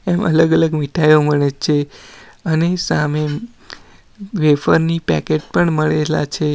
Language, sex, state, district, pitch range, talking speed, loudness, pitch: Gujarati, male, Gujarat, Valsad, 150-165 Hz, 120 wpm, -16 LUFS, 155 Hz